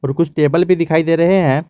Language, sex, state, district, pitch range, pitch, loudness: Hindi, male, Jharkhand, Garhwa, 150-170 Hz, 165 Hz, -14 LUFS